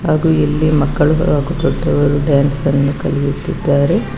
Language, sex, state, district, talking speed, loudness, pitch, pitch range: Kannada, female, Karnataka, Bangalore, 115 wpm, -15 LUFS, 145 Hz, 140-155 Hz